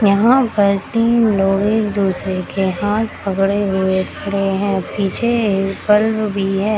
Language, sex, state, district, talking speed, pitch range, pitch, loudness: Hindi, female, Bihar, Samastipur, 140 wpm, 195-215 Hz, 200 Hz, -17 LUFS